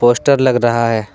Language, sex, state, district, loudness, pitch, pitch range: Hindi, male, Jharkhand, Deoghar, -13 LUFS, 120 Hz, 115-130 Hz